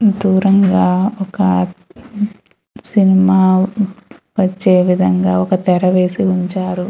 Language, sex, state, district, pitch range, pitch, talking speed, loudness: Telugu, female, Andhra Pradesh, Chittoor, 180-200 Hz, 190 Hz, 80 wpm, -14 LUFS